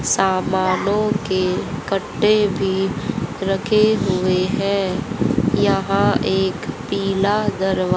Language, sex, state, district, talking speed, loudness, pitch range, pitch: Hindi, female, Haryana, Jhajjar, 85 wpm, -19 LUFS, 185-205 Hz, 195 Hz